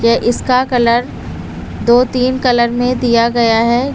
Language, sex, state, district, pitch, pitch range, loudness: Hindi, female, Uttar Pradesh, Lucknow, 240 Hz, 235-250 Hz, -13 LUFS